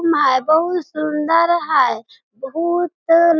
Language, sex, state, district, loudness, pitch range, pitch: Hindi, female, Bihar, Sitamarhi, -17 LUFS, 305-345 Hz, 330 Hz